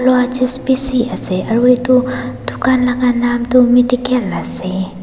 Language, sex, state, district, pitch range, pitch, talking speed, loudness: Nagamese, female, Nagaland, Dimapur, 225-255 Hz, 245 Hz, 105 wpm, -15 LUFS